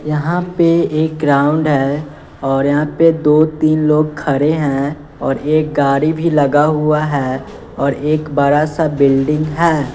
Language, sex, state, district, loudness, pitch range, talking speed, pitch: Hindi, female, Bihar, West Champaran, -15 LUFS, 140-155 Hz, 155 wpm, 150 Hz